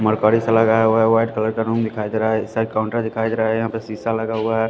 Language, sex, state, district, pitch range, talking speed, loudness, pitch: Hindi, male, Punjab, Fazilka, 110-115 Hz, 330 wpm, -19 LUFS, 110 Hz